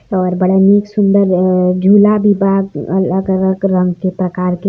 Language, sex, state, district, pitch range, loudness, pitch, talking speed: Hindi, male, Uttar Pradesh, Varanasi, 180-195 Hz, -12 LUFS, 190 Hz, 180 wpm